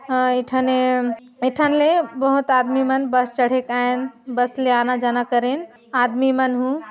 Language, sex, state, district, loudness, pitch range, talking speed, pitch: Chhattisgarhi, female, Chhattisgarh, Jashpur, -19 LUFS, 245-265 Hz, 175 wpm, 255 Hz